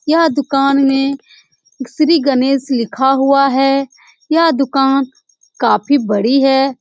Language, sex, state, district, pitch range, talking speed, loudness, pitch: Hindi, female, Bihar, Saran, 260-275 Hz, 115 wpm, -13 LUFS, 275 Hz